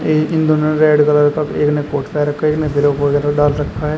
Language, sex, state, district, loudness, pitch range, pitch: Hindi, male, Uttar Pradesh, Shamli, -15 LUFS, 145-155 Hz, 150 Hz